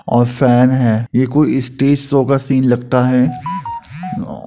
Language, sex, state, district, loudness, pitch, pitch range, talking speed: Hindi, male, Uttar Pradesh, Jyotiba Phule Nagar, -14 LUFS, 130 Hz, 125-145 Hz, 175 wpm